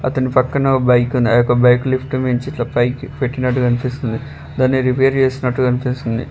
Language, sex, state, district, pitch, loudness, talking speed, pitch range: Telugu, male, Telangana, Hyderabad, 130 Hz, -16 LUFS, 170 wpm, 125-130 Hz